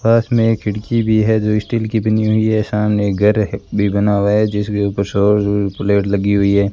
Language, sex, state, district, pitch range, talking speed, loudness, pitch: Hindi, male, Rajasthan, Bikaner, 100-110 Hz, 230 wpm, -16 LUFS, 105 Hz